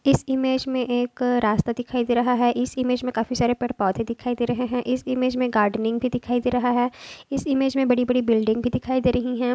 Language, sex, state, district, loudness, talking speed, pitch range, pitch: Hindi, female, Maharashtra, Dhule, -23 LUFS, 250 wpm, 240-255 Hz, 245 Hz